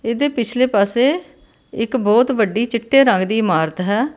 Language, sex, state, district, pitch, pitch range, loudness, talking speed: Punjabi, female, Karnataka, Bangalore, 235 Hz, 210-255 Hz, -16 LUFS, 160 wpm